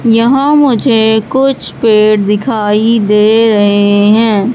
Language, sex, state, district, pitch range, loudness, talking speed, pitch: Hindi, female, Madhya Pradesh, Katni, 210-235 Hz, -9 LUFS, 105 wpm, 220 Hz